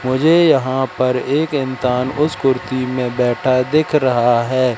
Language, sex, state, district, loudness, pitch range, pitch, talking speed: Hindi, male, Madhya Pradesh, Katni, -16 LUFS, 125-140 Hz, 130 Hz, 150 wpm